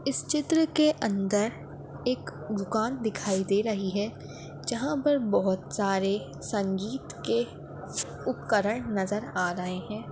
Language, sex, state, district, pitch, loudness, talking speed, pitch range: Hindi, female, Maharashtra, Dhule, 210 Hz, -29 LUFS, 125 wpm, 195-240 Hz